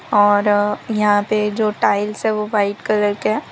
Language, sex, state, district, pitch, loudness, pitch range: Hindi, female, Gujarat, Valsad, 210 Hz, -18 LUFS, 205-215 Hz